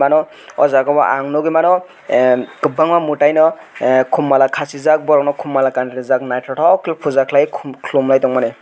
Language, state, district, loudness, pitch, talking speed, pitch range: Kokborok, Tripura, West Tripura, -15 LUFS, 140 Hz, 120 wpm, 135-155 Hz